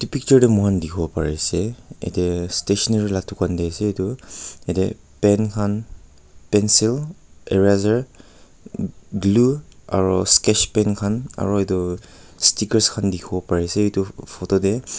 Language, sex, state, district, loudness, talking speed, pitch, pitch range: Nagamese, male, Nagaland, Kohima, -20 LUFS, 130 wpm, 100 Hz, 90-110 Hz